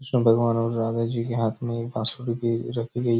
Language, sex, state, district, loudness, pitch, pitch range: Hindi, male, Chhattisgarh, Raigarh, -25 LUFS, 115 Hz, 115-120 Hz